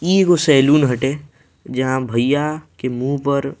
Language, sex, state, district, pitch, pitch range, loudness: Bhojpuri, male, Bihar, Muzaffarpur, 140 Hz, 130-150 Hz, -17 LUFS